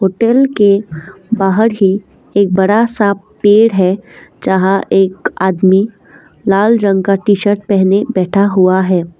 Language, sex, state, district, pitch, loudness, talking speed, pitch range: Hindi, female, Assam, Kamrup Metropolitan, 195 Hz, -12 LUFS, 130 wpm, 190-205 Hz